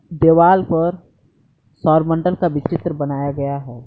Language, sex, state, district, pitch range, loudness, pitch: Hindi, male, Bihar, Kaimur, 140-170 Hz, -17 LUFS, 155 Hz